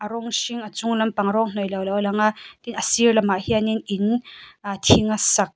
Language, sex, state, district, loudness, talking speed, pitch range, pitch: Mizo, female, Mizoram, Aizawl, -21 LUFS, 225 wpm, 200-225 Hz, 215 Hz